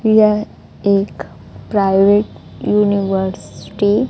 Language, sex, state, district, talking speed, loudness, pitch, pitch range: Hindi, female, Bihar, West Champaran, 75 wpm, -16 LUFS, 205 Hz, 195-210 Hz